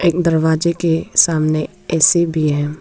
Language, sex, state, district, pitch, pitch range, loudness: Hindi, female, Arunachal Pradesh, Papum Pare, 160 Hz, 155-170 Hz, -15 LUFS